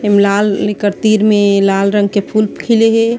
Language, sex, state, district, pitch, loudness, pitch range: Chhattisgarhi, female, Chhattisgarh, Sarguja, 205 Hz, -12 LUFS, 200-215 Hz